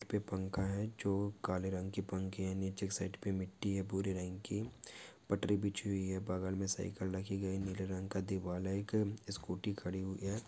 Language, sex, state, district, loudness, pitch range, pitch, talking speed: Hindi, male, Maharashtra, Pune, -40 LUFS, 95-100 Hz, 95 Hz, 225 wpm